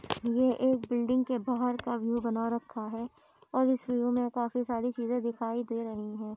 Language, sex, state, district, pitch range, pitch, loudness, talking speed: Hindi, female, Uttar Pradesh, Muzaffarnagar, 230-245 Hz, 240 Hz, -31 LUFS, 200 wpm